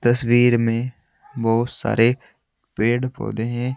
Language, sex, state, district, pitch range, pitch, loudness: Hindi, male, Uttar Pradesh, Saharanpur, 115-120 Hz, 120 Hz, -19 LUFS